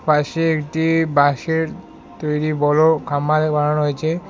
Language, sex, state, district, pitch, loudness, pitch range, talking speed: Bengali, male, West Bengal, Alipurduar, 155 Hz, -18 LUFS, 150-160 Hz, 95 wpm